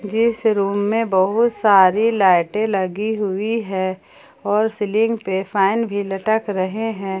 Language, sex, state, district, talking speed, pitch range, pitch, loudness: Hindi, female, Jharkhand, Palamu, 140 wpm, 195-220 Hz, 205 Hz, -19 LUFS